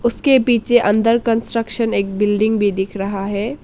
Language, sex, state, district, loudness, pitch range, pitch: Hindi, female, Arunachal Pradesh, Lower Dibang Valley, -16 LUFS, 205-235 Hz, 225 Hz